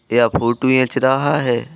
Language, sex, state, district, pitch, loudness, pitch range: Hindi, male, Uttar Pradesh, Jalaun, 130 Hz, -16 LUFS, 120-135 Hz